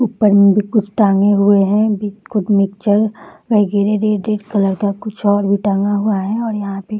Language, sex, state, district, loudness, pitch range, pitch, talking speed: Hindi, female, Bihar, Jahanabad, -15 LUFS, 200-215 Hz, 205 Hz, 190 wpm